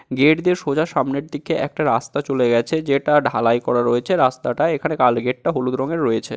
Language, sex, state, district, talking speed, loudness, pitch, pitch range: Bengali, male, West Bengal, Jalpaiguri, 190 wpm, -19 LUFS, 135 Hz, 120-150 Hz